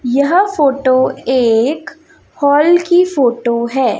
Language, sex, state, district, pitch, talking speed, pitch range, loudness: Hindi, female, Chhattisgarh, Raipur, 265 Hz, 105 wpm, 250-315 Hz, -13 LUFS